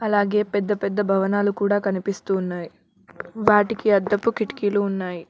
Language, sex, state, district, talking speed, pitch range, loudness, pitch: Telugu, female, Telangana, Mahabubabad, 125 wpm, 195-210 Hz, -22 LUFS, 205 Hz